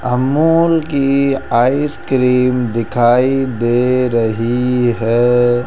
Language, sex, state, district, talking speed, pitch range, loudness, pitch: Hindi, male, Rajasthan, Jaipur, 75 wpm, 120-135 Hz, -14 LUFS, 125 Hz